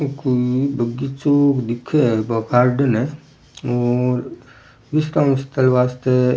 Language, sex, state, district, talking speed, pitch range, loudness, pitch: Rajasthani, male, Rajasthan, Churu, 115 wpm, 125-140 Hz, -18 LUFS, 125 Hz